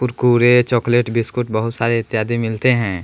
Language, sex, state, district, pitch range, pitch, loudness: Hindi, male, Bihar, West Champaran, 115-120 Hz, 120 Hz, -17 LUFS